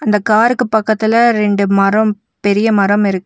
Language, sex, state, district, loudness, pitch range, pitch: Tamil, female, Tamil Nadu, Nilgiris, -13 LUFS, 200-220 Hz, 210 Hz